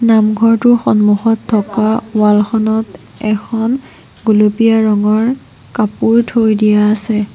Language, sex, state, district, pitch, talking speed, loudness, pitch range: Assamese, female, Assam, Sonitpur, 220 Hz, 100 wpm, -13 LUFS, 210-225 Hz